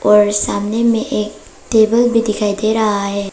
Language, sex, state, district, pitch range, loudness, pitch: Hindi, female, Arunachal Pradesh, Papum Pare, 205-225 Hz, -15 LUFS, 215 Hz